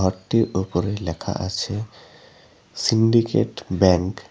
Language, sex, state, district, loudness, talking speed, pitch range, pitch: Bengali, male, West Bengal, Cooch Behar, -22 LUFS, 95 wpm, 95-110 Hz, 95 Hz